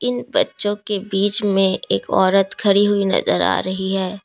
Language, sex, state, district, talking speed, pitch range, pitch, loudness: Hindi, female, Assam, Kamrup Metropolitan, 185 wpm, 190-205 Hz, 200 Hz, -18 LUFS